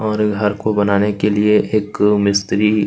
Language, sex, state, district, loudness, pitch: Hindi, male, Chhattisgarh, Kabirdham, -16 LUFS, 105 Hz